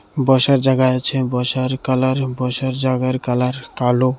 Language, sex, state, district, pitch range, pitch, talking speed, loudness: Bengali, male, Tripura, West Tripura, 125-130 Hz, 130 Hz, 130 wpm, -18 LUFS